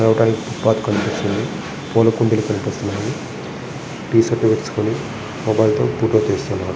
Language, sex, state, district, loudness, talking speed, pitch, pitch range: Telugu, male, Andhra Pradesh, Srikakulam, -19 LUFS, 90 wpm, 110 Hz, 105-115 Hz